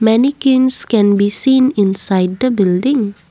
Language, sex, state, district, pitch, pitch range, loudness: English, female, Assam, Kamrup Metropolitan, 220 Hz, 200-260 Hz, -13 LUFS